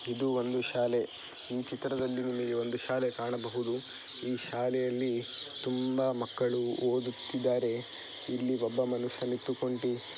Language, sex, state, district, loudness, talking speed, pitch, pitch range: Kannada, male, Karnataka, Dakshina Kannada, -33 LUFS, 105 wpm, 125 Hz, 120-130 Hz